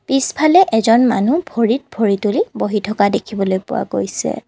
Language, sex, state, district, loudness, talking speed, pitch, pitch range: Assamese, female, Assam, Kamrup Metropolitan, -16 LUFS, 150 wpm, 225 Hz, 210-265 Hz